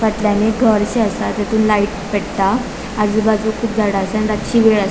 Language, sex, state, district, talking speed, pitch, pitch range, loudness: Konkani, female, Goa, North and South Goa, 185 wpm, 215 Hz, 205-220 Hz, -16 LUFS